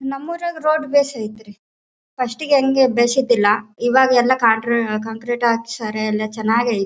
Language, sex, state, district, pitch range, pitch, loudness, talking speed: Kannada, female, Karnataka, Bellary, 220-265 Hz, 240 Hz, -18 LUFS, 150 wpm